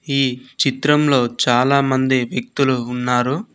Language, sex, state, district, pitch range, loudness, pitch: Telugu, male, Telangana, Mahabubabad, 125-140 Hz, -17 LUFS, 130 Hz